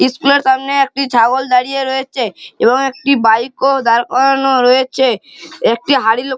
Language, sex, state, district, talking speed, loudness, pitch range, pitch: Bengali, male, West Bengal, Malda, 160 wpm, -13 LUFS, 250-275 Hz, 265 Hz